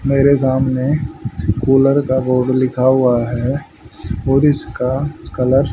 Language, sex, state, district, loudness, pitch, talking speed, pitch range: Hindi, male, Haryana, Charkhi Dadri, -16 LUFS, 130 Hz, 125 wpm, 125-135 Hz